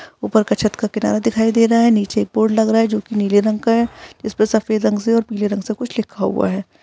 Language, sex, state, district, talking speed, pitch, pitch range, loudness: Hindi, female, Uttar Pradesh, Etah, 280 wpm, 220 Hz, 215-225 Hz, -17 LUFS